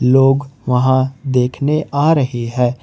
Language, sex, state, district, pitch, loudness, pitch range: Hindi, male, Jharkhand, Ranchi, 130 Hz, -16 LUFS, 125-140 Hz